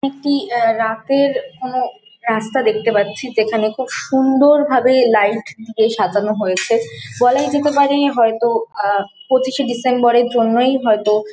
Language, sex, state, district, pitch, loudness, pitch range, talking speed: Bengali, female, West Bengal, Malda, 235 Hz, -16 LUFS, 220-265 Hz, 120 wpm